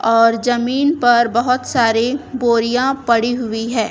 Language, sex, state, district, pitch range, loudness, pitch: Hindi, female, Chhattisgarh, Raipur, 230-250 Hz, -16 LUFS, 240 Hz